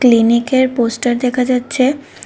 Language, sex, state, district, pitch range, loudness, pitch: Bengali, female, Tripura, West Tripura, 240-260 Hz, -14 LUFS, 250 Hz